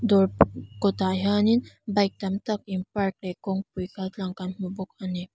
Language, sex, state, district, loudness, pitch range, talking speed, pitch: Mizo, female, Mizoram, Aizawl, -27 LUFS, 185-200 Hz, 170 wpm, 190 Hz